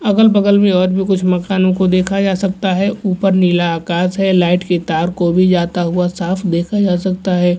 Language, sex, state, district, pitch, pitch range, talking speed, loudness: Hindi, male, Bihar, Supaul, 185 Hz, 175-195 Hz, 215 wpm, -14 LUFS